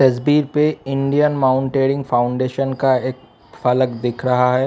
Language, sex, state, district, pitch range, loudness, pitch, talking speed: Hindi, male, Delhi, New Delhi, 125-135 Hz, -18 LUFS, 130 Hz, 130 wpm